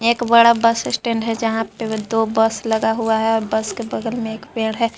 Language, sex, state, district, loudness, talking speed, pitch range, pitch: Hindi, female, Jharkhand, Garhwa, -18 LUFS, 230 wpm, 220-230 Hz, 225 Hz